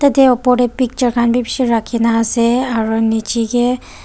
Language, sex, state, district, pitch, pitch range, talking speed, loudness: Nagamese, female, Nagaland, Dimapur, 240 Hz, 230-250 Hz, 165 wpm, -15 LUFS